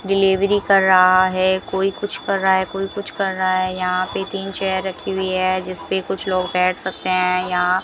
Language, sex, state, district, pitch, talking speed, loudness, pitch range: Hindi, female, Rajasthan, Bikaner, 190 Hz, 230 wpm, -19 LUFS, 185-195 Hz